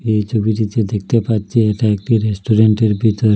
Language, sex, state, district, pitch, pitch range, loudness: Bengali, male, Assam, Hailakandi, 110 Hz, 105-110 Hz, -16 LUFS